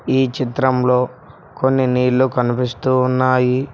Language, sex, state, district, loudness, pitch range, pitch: Telugu, male, Telangana, Mahabubabad, -17 LUFS, 125-130 Hz, 130 Hz